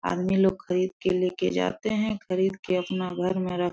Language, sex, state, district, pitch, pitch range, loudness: Hindi, female, Jharkhand, Sahebganj, 185 Hz, 180-190 Hz, -26 LUFS